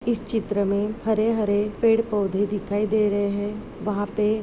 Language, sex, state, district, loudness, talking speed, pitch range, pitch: Hindi, female, Maharashtra, Nagpur, -24 LUFS, 175 wpm, 205-220 Hz, 210 Hz